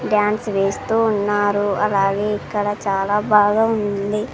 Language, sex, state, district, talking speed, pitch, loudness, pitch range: Telugu, female, Andhra Pradesh, Sri Satya Sai, 110 wpm, 205 Hz, -19 LUFS, 200-210 Hz